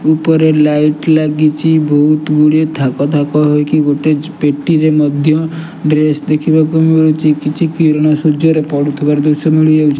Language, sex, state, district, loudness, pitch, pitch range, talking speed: Odia, male, Odisha, Nuapada, -11 LUFS, 155 Hz, 150-155 Hz, 120 wpm